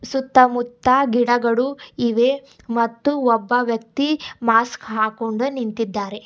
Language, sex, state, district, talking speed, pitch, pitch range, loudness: Kannada, female, Karnataka, Bidar, 95 wpm, 240 Hz, 230-260 Hz, -19 LUFS